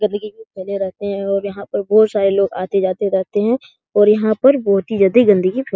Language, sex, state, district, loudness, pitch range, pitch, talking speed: Hindi, male, Bihar, Jahanabad, -16 LUFS, 195-215 Hz, 200 Hz, 230 wpm